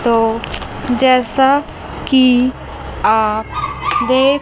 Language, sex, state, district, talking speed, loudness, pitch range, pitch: Hindi, female, Chandigarh, Chandigarh, 70 wpm, -15 LUFS, 230-270 Hz, 255 Hz